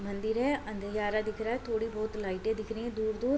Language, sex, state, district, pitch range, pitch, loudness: Hindi, female, Bihar, Gopalganj, 215-225 Hz, 220 Hz, -33 LUFS